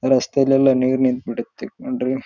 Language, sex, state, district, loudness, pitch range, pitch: Kannada, male, Karnataka, Raichur, -19 LUFS, 125-135 Hz, 130 Hz